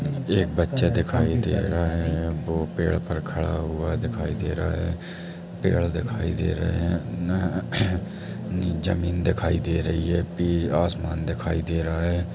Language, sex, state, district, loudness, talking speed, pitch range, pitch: Hindi, male, Chhattisgarh, Bastar, -25 LUFS, 160 wpm, 85-90 Hz, 85 Hz